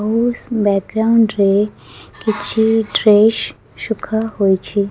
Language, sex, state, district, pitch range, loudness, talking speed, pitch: Odia, female, Odisha, Khordha, 200-220 Hz, -16 LUFS, 75 wpm, 215 Hz